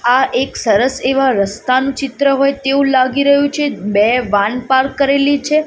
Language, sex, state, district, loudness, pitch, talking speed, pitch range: Gujarati, female, Gujarat, Gandhinagar, -14 LUFS, 265 Hz, 170 wpm, 250-280 Hz